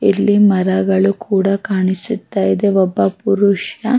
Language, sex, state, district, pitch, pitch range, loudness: Kannada, female, Karnataka, Mysore, 195 Hz, 190-205 Hz, -15 LUFS